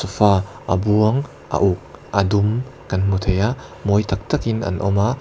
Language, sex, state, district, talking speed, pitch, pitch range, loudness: Mizo, male, Mizoram, Aizawl, 205 wpm, 100 Hz, 95-110 Hz, -20 LUFS